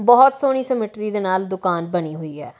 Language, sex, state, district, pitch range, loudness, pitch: Punjabi, female, Punjab, Kapurthala, 175-245 Hz, -19 LUFS, 195 Hz